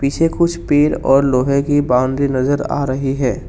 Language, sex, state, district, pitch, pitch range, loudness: Hindi, male, Assam, Kamrup Metropolitan, 140 Hz, 135-145 Hz, -16 LUFS